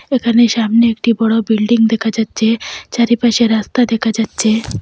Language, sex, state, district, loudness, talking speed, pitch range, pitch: Bengali, female, Assam, Hailakandi, -14 LUFS, 135 wpm, 225-235 Hz, 225 Hz